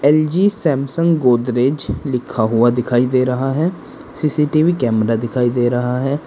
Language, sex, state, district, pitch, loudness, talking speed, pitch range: Hindi, male, Uttar Pradesh, Saharanpur, 130 Hz, -16 LUFS, 145 wpm, 120-150 Hz